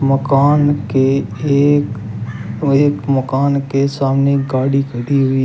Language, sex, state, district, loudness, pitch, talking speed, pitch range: Hindi, male, Uttar Pradesh, Shamli, -15 LUFS, 135 Hz, 130 wpm, 130-140 Hz